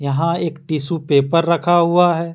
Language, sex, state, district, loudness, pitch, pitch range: Hindi, male, Jharkhand, Deoghar, -17 LUFS, 165 Hz, 155-170 Hz